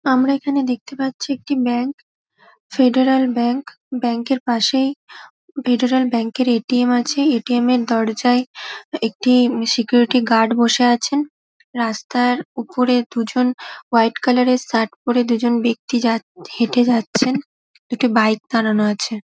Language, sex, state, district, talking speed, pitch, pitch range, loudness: Bengali, female, West Bengal, Dakshin Dinajpur, 145 wpm, 245 Hz, 235-260 Hz, -18 LUFS